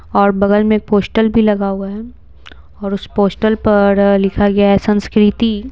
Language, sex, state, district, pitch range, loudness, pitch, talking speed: Hindi, female, Bihar, Patna, 200-215 Hz, -13 LUFS, 205 Hz, 180 wpm